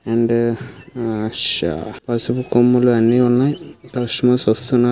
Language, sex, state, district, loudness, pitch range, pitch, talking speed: Telugu, male, Andhra Pradesh, Visakhapatnam, -17 LUFS, 115-125 Hz, 120 Hz, 110 wpm